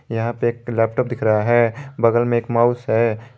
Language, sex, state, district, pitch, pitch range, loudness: Hindi, male, Jharkhand, Garhwa, 120 Hz, 115-120 Hz, -19 LUFS